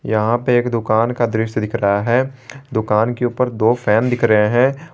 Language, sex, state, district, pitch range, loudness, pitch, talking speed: Hindi, male, Jharkhand, Garhwa, 110-125 Hz, -17 LUFS, 120 Hz, 205 wpm